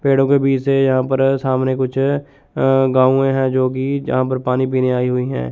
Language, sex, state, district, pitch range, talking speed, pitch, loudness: Hindi, male, Chandigarh, Chandigarh, 130-135 Hz, 205 wpm, 130 Hz, -17 LUFS